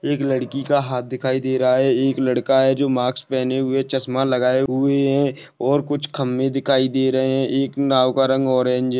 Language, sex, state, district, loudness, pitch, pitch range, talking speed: Hindi, male, Maharashtra, Nagpur, -19 LUFS, 130 Hz, 130-135 Hz, 215 wpm